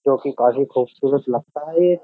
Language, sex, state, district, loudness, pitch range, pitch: Hindi, male, Uttar Pradesh, Jyotiba Phule Nagar, -20 LUFS, 125-150 Hz, 140 Hz